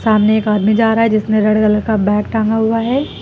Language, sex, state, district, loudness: Hindi, female, Uttar Pradesh, Lucknow, -14 LUFS